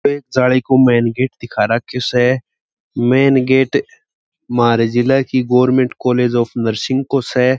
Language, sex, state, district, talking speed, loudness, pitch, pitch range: Marwari, male, Rajasthan, Churu, 150 wpm, -15 LUFS, 125 Hz, 120-130 Hz